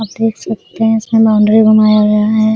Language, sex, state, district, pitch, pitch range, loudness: Hindi, female, Jharkhand, Sahebganj, 220 Hz, 215-225 Hz, -11 LUFS